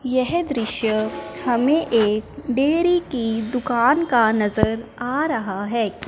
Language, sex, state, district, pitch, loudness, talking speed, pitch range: Hindi, female, Punjab, Fazilka, 240 Hz, -21 LUFS, 120 wpm, 220-285 Hz